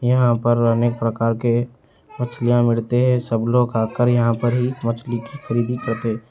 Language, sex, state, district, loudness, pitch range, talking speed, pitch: Hindi, male, Uttar Pradesh, Etah, -20 LUFS, 115-120 Hz, 150 wpm, 120 Hz